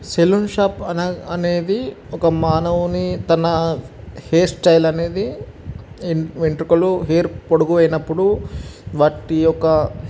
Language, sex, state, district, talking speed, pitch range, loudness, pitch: Telugu, male, Telangana, Nalgonda, 100 wpm, 155-175 Hz, -18 LUFS, 165 Hz